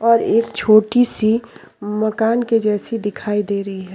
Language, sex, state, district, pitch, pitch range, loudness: Hindi, female, Chhattisgarh, Sukma, 215 Hz, 205-230 Hz, -17 LUFS